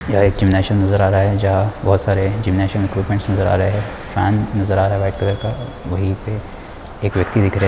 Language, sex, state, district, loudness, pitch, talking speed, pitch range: Hindi, male, Bihar, East Champaran, -18 LUFS, 100 Hz, 225 wpm, 95-100 Hz